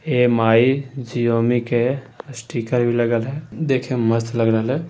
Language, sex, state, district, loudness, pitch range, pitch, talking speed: Hindi, male, Bihar, Madhepura, -19 LUFS, 115-130 Hz, 120 Hz, 160 wpm